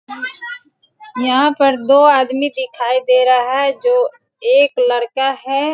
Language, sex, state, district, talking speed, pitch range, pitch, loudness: Hindi, female, Bihar, Sitamarhi, 125 wpm, 255-300 Hz, 275 Hz, -14 LUFS